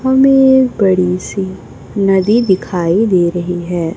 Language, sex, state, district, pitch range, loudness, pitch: Hindi, female, Chhattisgarh, Raipur, 180-225 Hz, -13 LUFS, 190 Hz